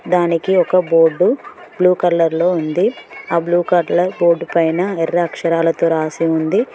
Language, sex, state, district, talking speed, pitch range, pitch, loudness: Telugu, female, Telangana, Mahabubabad, 140 wpm, 165-180 Hz, 170 Hz, -16 LUFS